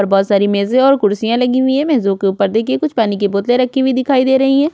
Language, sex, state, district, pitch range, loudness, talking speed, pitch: Hindi, female, Uttar Pradesh, Budaun, 200-265 Hz, -14 LUFS, 290 wpm, 245 Hz